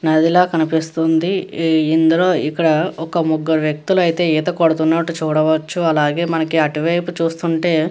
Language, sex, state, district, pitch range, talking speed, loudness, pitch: Telugu, female, Andhra Pradesh, Guntur, 155-170 Hz, 130 wpm, -17 LUFS, 160 Hz